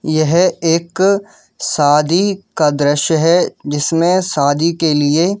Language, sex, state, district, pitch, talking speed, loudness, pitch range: Hindi, male, Jharkhand, Jamtara, 165 Hz, 120 wpm, -14 LUFS, 150-180 Hz